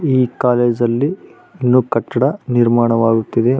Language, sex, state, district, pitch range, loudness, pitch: Kannada, male, Karnataka, Raichur, 120-130 Hz, -15 LUFS, 125 Hz